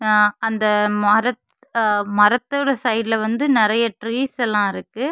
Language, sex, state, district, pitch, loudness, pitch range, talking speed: Tamil, female, Tamil Nadu, Kanyakumari, 225 Hz, -19 LUFS, 210-250 Hz, 105 wpm